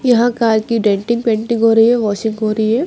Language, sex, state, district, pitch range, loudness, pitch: Hindi, female, Bihar, Patna, 215-235 Hz, -15 LUFS, 225 Hz